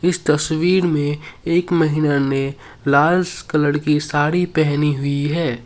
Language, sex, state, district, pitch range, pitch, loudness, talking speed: Hindi, male, Assam, Sonitpur, 145-170 Hz, 150 Hz, -18 LUFS, 140 wpm